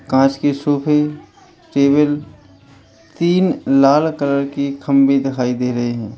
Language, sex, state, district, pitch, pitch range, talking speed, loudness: Hindi, male, Uttar Pradesh, Lalitpur, 140 Hz, 125-145 Hz, 125 wpm, -16 LUFS